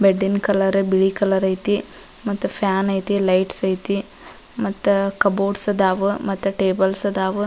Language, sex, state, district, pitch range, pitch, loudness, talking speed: Kannada, female, Karnataka, Dharwad, 190-200 Hz, 195 Hz, -19 LUFS, 135 wpm